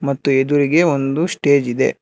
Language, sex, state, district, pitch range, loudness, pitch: Kannada, male, Karnataka, Bangalore, 135-150 Hz, -16 LUFS, 140 Hz